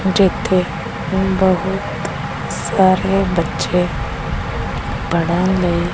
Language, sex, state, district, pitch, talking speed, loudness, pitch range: Punjabi, female, Punjab, Kapurthala, 180 Hz, 60 wpm, -18 LUFS, 170-190 Hz